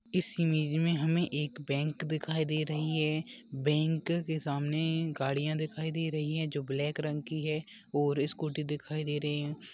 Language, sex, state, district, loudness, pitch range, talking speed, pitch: Hindi, male, Goa, North and South Goa, -32 LUFS, 150-160 Hz, 175 wpm, 155 Hz